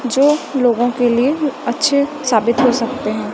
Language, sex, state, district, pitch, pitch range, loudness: Hindi, female, Chhattisgarh, Raipur, 250 Hz, 240-280 Hz, -16 LUFS